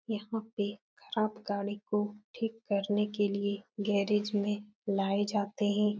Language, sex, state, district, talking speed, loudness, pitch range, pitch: Hindi, female, Uttar Pradesh, Etah, 140 wpm, -33 LUFS, 205-215 Hz, 210 Hz